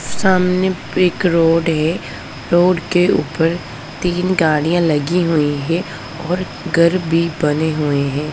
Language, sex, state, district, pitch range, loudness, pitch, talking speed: Hindi, female, Punjab, Pathankot, 150-180 Hz, -16 LUFS, 165 Hz, 130 wpm